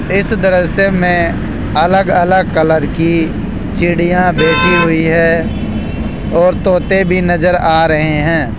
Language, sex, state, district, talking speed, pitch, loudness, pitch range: Hindi, male, Rajasthan, Jaipur, 125 wpm, 170 Hz, -12 LUFS, 160-180 Hz